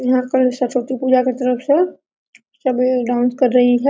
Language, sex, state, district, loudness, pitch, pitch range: Hindi, female, Jharkhand, Sahebganj, -17 LUFS, 255 Hz, 250-260 Hz